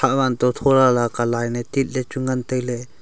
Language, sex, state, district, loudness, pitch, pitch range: Wancho, male, Arunachal Pradesh, Longding, -20 LUFS, 125 Hz, 120-130 Hz